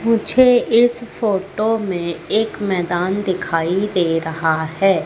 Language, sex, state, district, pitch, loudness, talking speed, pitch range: Hindi, female, Madhya Pradesh, Katni, 195 Hz, -18 LUFS, 120 wpm, 170-225 Hz